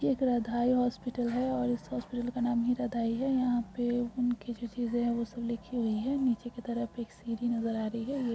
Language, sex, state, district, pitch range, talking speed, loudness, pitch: Hindi, female, Maharashtra, Aurangabad, 235-245 Hz, 230 wpm, -32 LUFS, 240 Hz